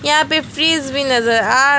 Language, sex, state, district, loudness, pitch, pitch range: Hindi, female, West Bengal, Alipurduar, -15 LUFS, 280 Hz, 255-310 Hz